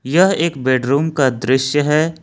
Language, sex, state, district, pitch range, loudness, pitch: Hindi, male, Jharkhand, Ranchi, 130-160 Hz, -16 LUFS, 145 Hz